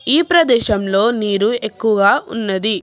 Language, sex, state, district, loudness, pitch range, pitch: Telugu, female, Telangana, Hyderabad, -15 LUFS, 200-240 Hz, 215 Hz